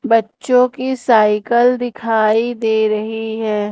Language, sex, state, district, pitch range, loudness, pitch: Hindi, female, Madhya Pradesh, Umaria, 220-245 Hz, -16 LUFS, 225 Hz